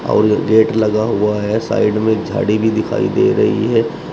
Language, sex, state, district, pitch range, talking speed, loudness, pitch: Hindi, male, Uttar Pradesh, Shamli, 105-110 Hz, 190 wpm, -15 LUFS, 110 Hz